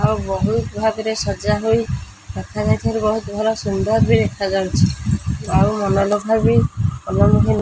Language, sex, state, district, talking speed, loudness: Odia, female, Odisha, Khordha, 135 wpm, -18 LUFS